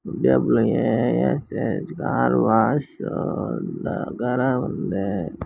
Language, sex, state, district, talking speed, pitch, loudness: Telugu, male, Andhra Pradesh, Srikakulam, 110 wpm, 65 Hz, -22 LUFS